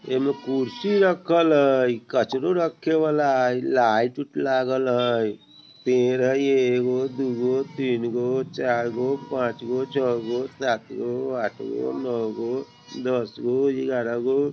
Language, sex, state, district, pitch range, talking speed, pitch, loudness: Bajjika, male, Bihar, Vaishali, 120-135 Hz, 110 wpm, 130 Hz, -23 LUFS